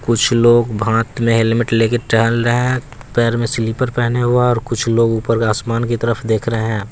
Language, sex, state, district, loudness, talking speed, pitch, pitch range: Hindi, male, Bihar, West Champaran, -16 LUFS, 215 wpm, 115 Hz, 115-120 Hz